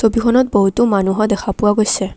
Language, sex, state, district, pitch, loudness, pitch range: Assamese, female, Assam, Kamrup Metropolitan, 210 Hz, -15 LUFS, 200-230 Hz